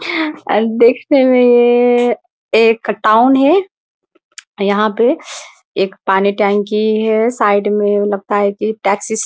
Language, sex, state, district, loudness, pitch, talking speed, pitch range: Hindi, female, Bihar, Muzaffarpur, -13 LUFS, 220 Hz, 135 wpm, 205-250 Hz